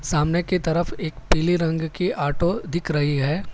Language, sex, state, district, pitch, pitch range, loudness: Hindi, male, Telangana, Hyderabad, 160 Hz, 150-175 Hz, -23 LUFS